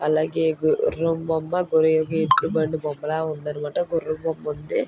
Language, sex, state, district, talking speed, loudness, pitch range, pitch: Telugu, female, Andhra Pradesh, Guntur, 110 wpm, -23 LUFS, 155-165 Hz, 160 Hz